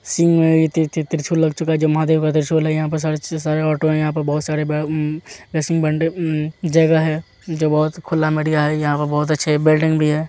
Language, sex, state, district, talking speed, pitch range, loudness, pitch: Hindi, male, Bihar, Muzaffarpur, 175 wpm, 155-160 Hz, -18 LUFS, 155 Hz